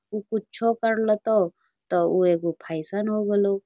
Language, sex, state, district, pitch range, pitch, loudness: Magahi, female, Bihar, Lakhisarai, 175-215 Hz, 205 Hz, -24 LUFS